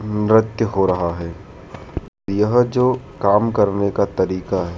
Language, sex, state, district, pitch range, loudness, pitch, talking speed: Hindi, male, Madhya Pradesh, Dhar, 95-110 Hz, -18 LUFS, 100 Hz, 140 wpm